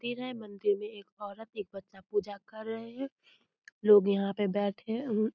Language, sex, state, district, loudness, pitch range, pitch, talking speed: Hindi, female, Bihar, Muzaffarpur, -31 LUFS, 200-225 Hz, 210 Hz, 215 wpm